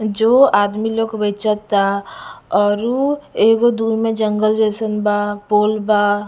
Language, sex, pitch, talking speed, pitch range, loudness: Bhojpuri, female, 215 Hz, 135 wpm, 205-225 Hz, -16 LUFS